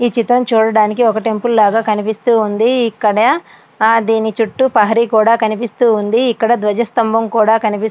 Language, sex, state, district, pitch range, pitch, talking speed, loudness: Telugu, female, Andhra Pradesh, Srikakulam, 220-235 Hz, 225 Hz, 150 wpm, -13 LUFS